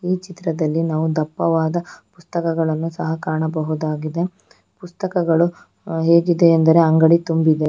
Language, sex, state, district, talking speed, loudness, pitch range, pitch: Kannada, female, Karnataka, Bangalore, 95 wpm, -19 LUFS, 160-170 Hz, 165 Hz